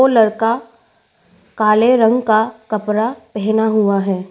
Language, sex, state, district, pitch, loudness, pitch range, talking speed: Hindi, female, Arunachal Pradesh, Lower Dibang Valley, 220 Hz, -15 LUFS, 210-230 Hz, 110 wpm